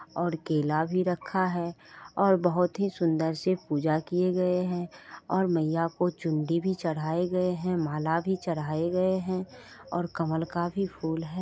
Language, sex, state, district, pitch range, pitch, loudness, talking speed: Maithili, female, Bihar, Supaul, 160-185 Hz, 175 Hz, -28 LUFS, 175 wpm